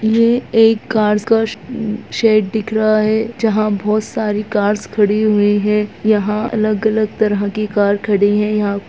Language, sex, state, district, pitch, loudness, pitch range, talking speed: Hindi, male, Bihar, Muzaffarpur, 215 Hz, -15 LUFS, 210-220 Hz, 175 wpm